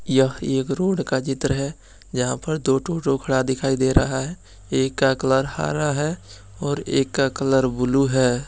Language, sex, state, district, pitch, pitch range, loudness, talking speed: Hindi, male, Jharkhand, Deoghar, 135 Hz, 130-140 Hz, -22 LUFS, 190 wpm